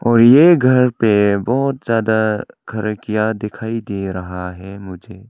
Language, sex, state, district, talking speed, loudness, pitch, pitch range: Hindi, male, Arunachal Pradesh, Longding, 135 wpm, -16 LUFS, 110 Hz, 100-115 Hz